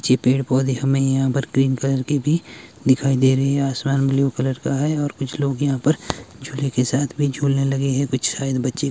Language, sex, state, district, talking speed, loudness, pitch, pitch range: Hindi, male, Himachal Pradesh, Shimla, 235 wpm, -20 LUFS, 135 Hz, 130-140 Hz